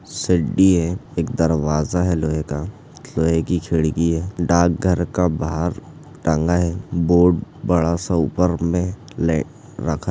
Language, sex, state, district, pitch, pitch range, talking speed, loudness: Hindi, male, Chhattisgarh, Bastar, 85 Hz, 80-90 Hz, 140 wpm, -20 LUFS